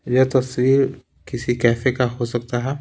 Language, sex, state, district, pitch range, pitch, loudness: Hindi, male, Bihar, Patna, 120-130 Hz, 125 Hz, -20 LUFS